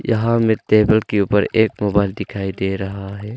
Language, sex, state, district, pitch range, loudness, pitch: Hindi, male, Arunachal Pradesh, Longding, 100-110 Hz, -18 LUFS, 105 Hz